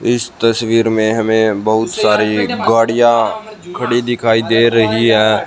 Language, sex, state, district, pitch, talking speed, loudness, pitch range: Hindi, male, Haryana, Rohtak, 115 Hz, 130 wpm, -13 LUFS, 110-120 Hz